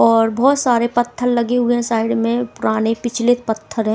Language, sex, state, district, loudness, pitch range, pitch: Hindi, female, Himachal Pradesh, Shimla, -17 LUFS, 225-245 Hz, 235 Hz